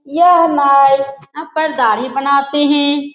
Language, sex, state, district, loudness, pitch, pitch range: Hindi, female, Uttar Pradesh, Etah, -12 LUFS, 285 Hz, 275-310 Hz